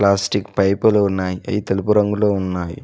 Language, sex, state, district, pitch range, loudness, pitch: Telugu, male, Telangana, Mahabubabad, 95-105 Hz, -18 LUFS, 100 Hz